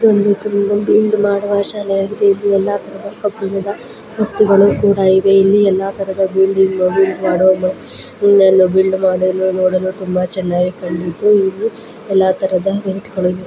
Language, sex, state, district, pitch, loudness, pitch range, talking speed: Kannada, female, Karnataka, Belgaum, 195 Hz, -14 LUFS, 185-205 Hz, 115 wpm